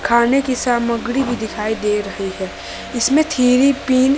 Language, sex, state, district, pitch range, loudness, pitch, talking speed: Hindi, female, Bihar, West Champaran, 220-260 Hz, -17 LUFS, 240 Hz, 170 wpm